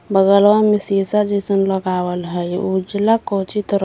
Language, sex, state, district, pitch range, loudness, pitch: Magahi, female, Jharkhand, Palamu, 190-205 Hz, -17 LUFS, 195 Hz